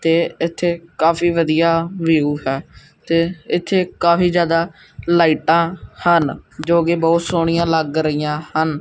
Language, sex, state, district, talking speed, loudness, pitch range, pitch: Punjabi, male, Punjab, Kapurthala, 130 wpm, -17 LUFS, 160-170 Hz, 165 Hz